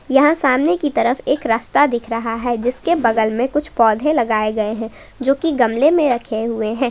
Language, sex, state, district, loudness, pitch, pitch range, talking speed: Hindi, female, Jharkhand, Palamu, -17 LUFS, 240 Hz, 225-290 Hz, 210 wpm